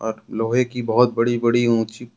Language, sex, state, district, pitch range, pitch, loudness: Hindi, male, Jharkhand, Deoghar, 115-120 Hz, 120 Hz, -20 LUFS